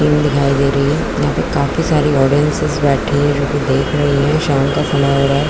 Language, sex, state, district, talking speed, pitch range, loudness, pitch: Hindi, female, Chhattisgarh, Bilaspur, 250 wpm, 140-150 Hz, -15 LUFS, 140 Hz